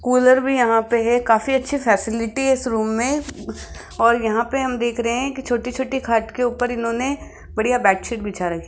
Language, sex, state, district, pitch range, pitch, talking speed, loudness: Hindi, female, Rajasthan, Jaipur, 225-260 Hz, 240 Hz, 200 wpm, -20 LUFS